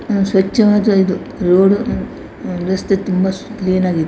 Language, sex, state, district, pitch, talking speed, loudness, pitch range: Kannada, female, Karnataka, Dakshina Kannada, 190 Hz, 120 wpm, -15 LUFS, 185-205 Hz